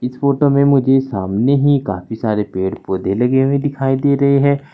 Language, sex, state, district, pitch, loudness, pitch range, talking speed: Hindi, male, Uttar Pradesh, Saharanpur, 135 Hz, -16 LUFS, 110-140 Hz, 205 wpm